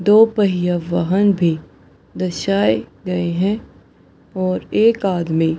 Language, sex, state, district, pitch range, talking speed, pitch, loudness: Hindi, female, Bihar, Gaya, 160-195 Hz, 120 wpm, 180 Hz, -18 LUFS